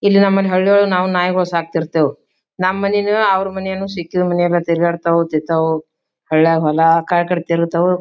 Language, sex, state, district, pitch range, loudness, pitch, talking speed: Kannada, female, Karnataka, Bijapur, 165-190 Hz, -16 LUFS, 175 Hz, 140 wpm